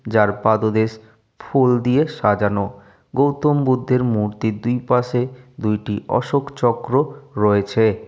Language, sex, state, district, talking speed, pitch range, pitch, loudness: Bengali, male, West Bengal, Jalpaiguri, 105 wpm, 105-130 Hz, 120 Hz, -19 LUFS